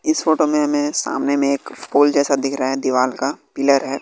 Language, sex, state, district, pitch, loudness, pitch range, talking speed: Hindi, male, Bihar, West Champaran, 140 Hz, -18 LUFS, 135-145 Hz, 240 wpm